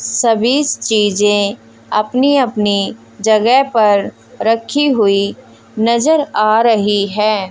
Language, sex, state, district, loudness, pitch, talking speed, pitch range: Hindi, female, Haryana, Jhajjar, -14 LUFS, 215 Hz, 95 wpm, 205-235 Hz